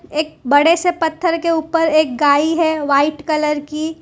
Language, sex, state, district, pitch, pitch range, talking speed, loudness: Hindi, female, Gujarat, Valsad, 310 Hz, 300-330 Hz, 165 wpm, -16 LUFS